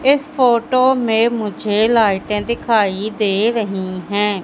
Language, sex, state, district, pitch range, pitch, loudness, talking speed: Hindi, female, Madhya Pradesh, Katni, 205-235 Hz, 220 Hz, -16 LUFS, 120 wpm